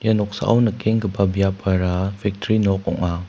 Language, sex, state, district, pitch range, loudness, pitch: Garo, male, Meghalaya, West Garo Hills, 95-110 Hz, -20 LUFS, 100 Hz